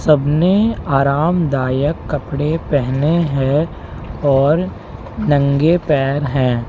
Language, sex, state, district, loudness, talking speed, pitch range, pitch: Hindi, male, Uttar Pradesh, Lalitpur, -16 LUFS, 90 wpm, 135-160 Hz, 145 Hz